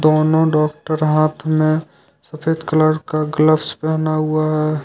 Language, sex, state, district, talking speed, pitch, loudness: Hindi, male, Jharkhand, Ranchi, 135 wpm, 155 Hz, -17 LUFS